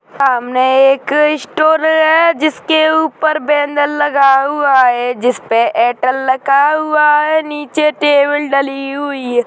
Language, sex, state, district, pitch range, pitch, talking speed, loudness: Hindi, female, Uttarakhand, Tehri Garhwal, 270-305 Hz, 290 Hz, 125 wpm, -12 LUFS